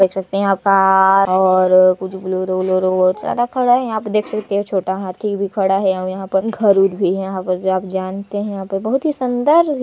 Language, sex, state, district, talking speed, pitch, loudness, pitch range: Hindi, female, Chhattisgarh, Sarguja, 250 wpm, 195 Hz, -16 LUFS, 185-210 Hz